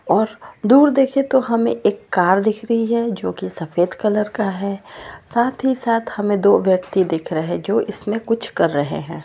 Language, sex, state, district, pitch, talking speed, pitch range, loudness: Marwari, female, Rajasthan, Churu, 210 Hz, 190 wpm, 185-230 Hz, -18 LUFS